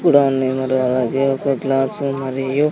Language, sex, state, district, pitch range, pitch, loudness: Telugu, male, Andhra Pradesh, Sri Satya Sai, 130-135 Hz, 135 Hz, -18 LUFS